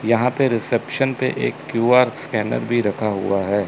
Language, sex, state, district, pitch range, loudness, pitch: Hindi, male, Chandigarh, Chandigarh, 100-125 Hz, -20 LUFS, 115 Hz